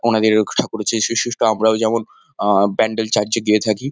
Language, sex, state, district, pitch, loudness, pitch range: Bengali, male, West Bengal, Kolkata, 110 Hz, -17 LUFS, 110-115 Hz